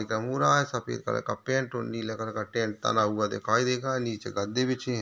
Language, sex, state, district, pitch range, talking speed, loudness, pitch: Hindi, male, Maharashtra, Solapur, 110-125 Hz, 205 wpm, -28 LUFS, 120 Hz